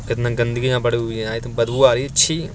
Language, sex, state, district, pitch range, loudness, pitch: Hindi, male, Uttar Pradesh, Etah, 115-135 Hz, -18 LUFS, 120 Hz